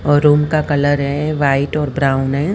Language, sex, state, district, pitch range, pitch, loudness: Hindi, female, Haryana, Rohtak, 140-150 Hz, 145 Hz, -15 LUFS